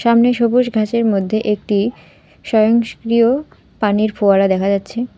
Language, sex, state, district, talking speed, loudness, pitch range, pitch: Bengali, female, West Bengal, Alipurduar, 115 wpm, -16 LUFS, 205-235 Hz, 220 Hz